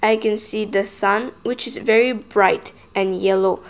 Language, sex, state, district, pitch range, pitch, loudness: English, female, Nagaland, Kohima, 195-225 Hz, 215 Hz, -19 LUFS